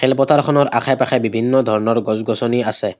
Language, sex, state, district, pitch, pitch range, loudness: Assamese, male, Assam, Kamrup Metropolitan, 120 Hz, 115-135 Hz, -16 LUFS